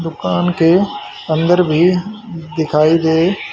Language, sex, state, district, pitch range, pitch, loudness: Hindi, male, Haryana, Rohtak, 160-180 Hz, 170 Hz, -14 LUFS